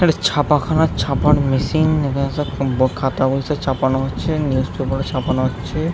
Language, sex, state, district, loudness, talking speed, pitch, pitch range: Bengali, male, West Bengal, Jhargram, -18 LUFS, 160 wpm, 140 Hz, 130-150 Hz